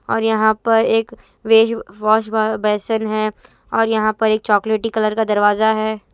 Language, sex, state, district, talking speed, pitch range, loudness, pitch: Hindi, female, Chhattisgarh, Raipur, 165 wpm, 215-225 Hz, -17 LUFS, 220 Hz